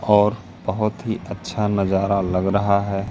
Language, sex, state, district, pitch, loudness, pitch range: Hindi, male, Madhya Pradesh, Katni, 100 Hz, -21 LUFS, 95-105 Hz